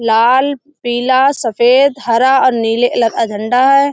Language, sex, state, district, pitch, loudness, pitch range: Hindi, female, Uttar Pradesh, Budaun, 245 Hz, -12 LUFS, 230-270 Hz